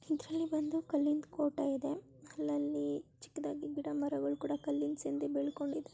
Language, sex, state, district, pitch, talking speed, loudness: Kannada, female, Karnataka, Raichur, 285 Hz, 100 wpm, -37 LUFS